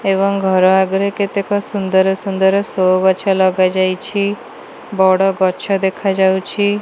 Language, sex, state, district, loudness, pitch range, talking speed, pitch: Odia, female, Odisha, Malkangiri, -15 LUFS, 190-200 Hz, 105 wpm, 190 Hz